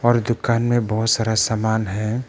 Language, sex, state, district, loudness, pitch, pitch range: Hindi, male, Arunachal Pradesh, Papum Pare, -20 LUFS, 115 Hz, 110-120 Hz